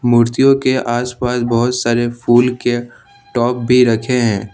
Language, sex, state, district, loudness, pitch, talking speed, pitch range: Hindi, male, Jharkhand, Ranchi, -15 LUFS, 120 Hz, 160 wpm, 120-125 Hz